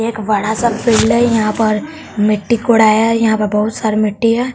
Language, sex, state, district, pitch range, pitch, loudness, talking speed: Hindi, male, Bihar, West Champaran, 215-230 Hz, 220 Hz, -14 LUFS, 185 wpm